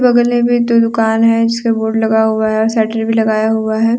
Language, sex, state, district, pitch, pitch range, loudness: Hindi, female, Jharkhand, Deoghar, 225 Hz, 220-230 Hz, -13 LUFS